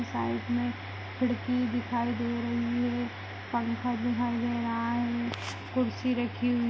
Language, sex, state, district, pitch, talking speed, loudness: Kumaoni, female, Uttarakhand, Tehri Garhwal, 235 Hz, 135 wpm, -31 LUFS